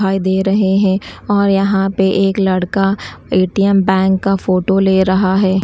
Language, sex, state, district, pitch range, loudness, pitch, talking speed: Hindi, female, Bihar, Kaimur, 190-195 Hz, -14 LUFS, 195 Hz, 160 wpm